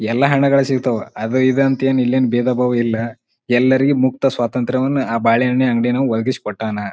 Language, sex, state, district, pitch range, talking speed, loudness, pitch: Kannada, male, Karnataka, Bijapur, 115-130 Hz, 140 wpm, -17 LUFS, 125 Hz